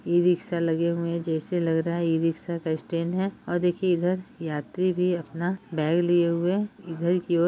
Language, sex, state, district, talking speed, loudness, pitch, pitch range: Hindi, female, Jharkhand, Jamtara, 200 wpm, -26 LUFS, 170 Hz, 165-180 Hz